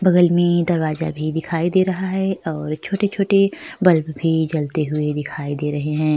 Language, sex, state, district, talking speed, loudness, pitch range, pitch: Hindi, female, Bihar, Kishanganj, 175 wpm, -19 LUFS, 155-185 Hz, 160 Hz